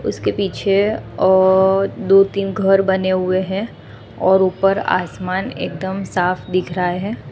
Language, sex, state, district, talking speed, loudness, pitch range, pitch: Hindi, female, Gujarat, Gandhinagar, 140 wpm, -17 LUFS, 185-195 Hz, 190 Hz